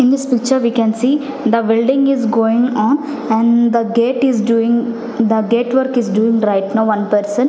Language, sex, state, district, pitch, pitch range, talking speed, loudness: English, female, Punjab, Fazilka, 235 Hz, 225-260 Hz, 200 wpm, -14 LUFS